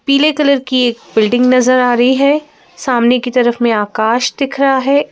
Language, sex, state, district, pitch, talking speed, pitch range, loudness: Hindi, female, Madhya Pradesh, Bhopal, 255 Hz, 200 wpm, 240-275 Hz, -12 LUFS